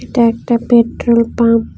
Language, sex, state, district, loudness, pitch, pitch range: Bengali, female, Tripura, West Tripura, -13 LUFS, 235 Hz, 230-235 Hz